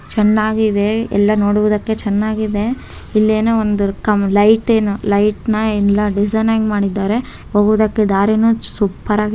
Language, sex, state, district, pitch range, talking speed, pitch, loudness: Kannada, male, Karnataka, Bellary, 205-220 Hz, 130 wpm, 210 Hz, -15 LUFS